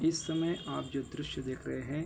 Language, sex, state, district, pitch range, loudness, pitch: Hindi, male, Bihar, Kishanganj, 130-160 Hz, -36 LUFS, 150 Hz